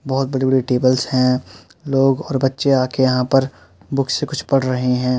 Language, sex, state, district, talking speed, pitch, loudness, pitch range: Hindi, male, Uttar Pradesh, Muzaffarnagar, 210 wpm, 130 Hz, -18 LUFS, 125-135 Hz